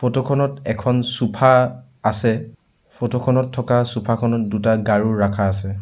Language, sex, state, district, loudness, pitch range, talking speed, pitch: Assamese, male, Assam, Sonitpur, -19 LUFS, 110-125 Hz, 145 wpm, 120 Hz